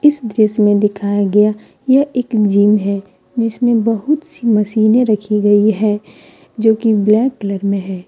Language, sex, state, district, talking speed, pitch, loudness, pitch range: Hindi, female, Jharkhand, Deoghar, 165 wpm, 215 Hz, -14 LUFS, 205-230 Hz